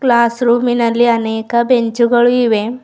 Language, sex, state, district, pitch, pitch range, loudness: Kannada, female, Karnataka, Bidar, 235 Hz, 230-240 Hz, -13 LUFS